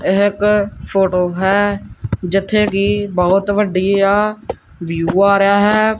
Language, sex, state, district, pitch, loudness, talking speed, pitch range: Punjabi, male, Punjab, Kapurthala, 200 Hz, -15 LUFS, 120 wpm, 190-205 Hz